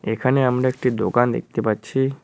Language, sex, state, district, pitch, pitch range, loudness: Bengali, male, West Bengal, Cooch Behar, 125 Hz, 115-130 Hz, -21 LUFS